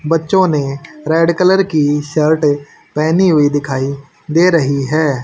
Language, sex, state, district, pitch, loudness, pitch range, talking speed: Hindi, male, Haryana, Charkhi Dadri, 155 Hz, -14 LUFS, 145-165 Hz, 140 wpm